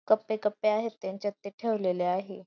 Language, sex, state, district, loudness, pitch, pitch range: Marathi, female, Maharashtra, Dhule, -30 LUFS, 205 Hz, 190-215 Hz